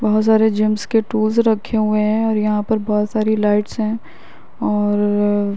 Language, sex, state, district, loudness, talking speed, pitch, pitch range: Hindi, female, Uttar Pradesh, Varanasi, -17 LUFS, 185 wpm, 215 Hz, 210-220 Hz